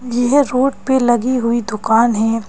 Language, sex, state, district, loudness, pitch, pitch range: Hindi, female, Madhya Pradesh, Bhopal, -15 LUFS, 240 Hz, 225-255 Hz